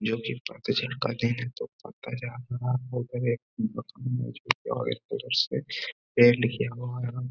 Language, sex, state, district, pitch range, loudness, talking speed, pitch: Hindi, male, Bihar, Gaya, 120-130 Hz, -29 LUFS, 40 wpm, 125 Hz